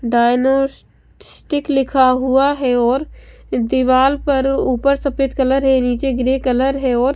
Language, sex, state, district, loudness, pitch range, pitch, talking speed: Hindi, female, Bihar, West Champaran, -16 LUFS, 255-275 Hz, 265 Hz, 150 wpm